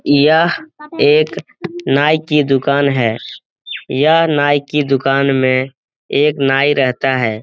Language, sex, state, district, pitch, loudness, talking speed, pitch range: Hindi, male, Bihar, Jamui, 140 Hz, -14 LUFS, 120 wpm, 135-155 Hz